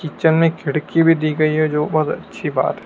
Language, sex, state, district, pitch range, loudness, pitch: Hindi, male, Madhya Pradesh, Dhar, 155-165 Hz, -18 LUFS, 155 Hz